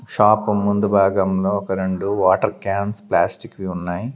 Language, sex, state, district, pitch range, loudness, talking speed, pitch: Telugu, male, Andhra Pradesh, Sri Satya Sai, 95-105 Hz, -19 LUFS, 145 wpm, 100 Hz